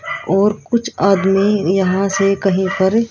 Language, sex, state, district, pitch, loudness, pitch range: Hindi, female, Haryana, Rohtak, 195 Hz, -15 LUFS, 190-205 Hz